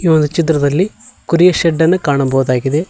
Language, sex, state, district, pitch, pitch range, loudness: Kannada, male, Karnataka, Koppal, 160 Hz, 145-170 Hz, -13 LUFS